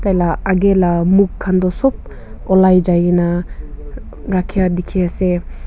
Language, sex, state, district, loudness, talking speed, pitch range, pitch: Nagamese, female, Nagaland, Kohima, -15 LUFS, 135 wpm, 175-190 Hz, 185 Hz